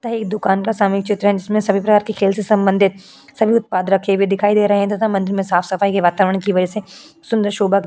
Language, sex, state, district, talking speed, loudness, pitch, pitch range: Hindi, female, Uttar Pradesh, Jyotiba Phule Nagar, 275 wpm, -17 LUFS, 200 Hz, 195-210 Hz